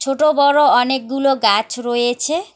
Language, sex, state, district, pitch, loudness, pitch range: Bengali, female, West Bengal, Alipurduar, 265 Hz, -15 LUFS, 245-285 Hz